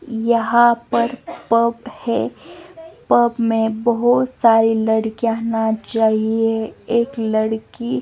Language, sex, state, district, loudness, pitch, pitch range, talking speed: Hindi, female, Himachal Pradesh, Shimla, -18 LUFS, 230 Hz, 225-240 Hz, 95 wpm